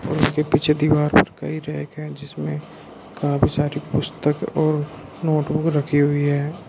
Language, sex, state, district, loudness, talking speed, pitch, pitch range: Hindi, male, Arunachal Pradesh, Lower Dibang Valley, -21 LUFS, 155 wpm, 150 Hz, 145-155 Hz